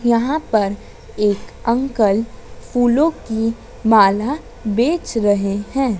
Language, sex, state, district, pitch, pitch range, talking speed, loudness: Hindi, female, Madhya Pradesh, Dhar, 225 Hz, 210-255 Hz, 100 wpm, -18 LUFS